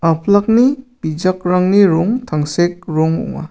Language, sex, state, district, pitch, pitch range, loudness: Garo, male, Meghalaya, South Garo Hills, 180 Hz, 160-205 Hz, -15 LUFS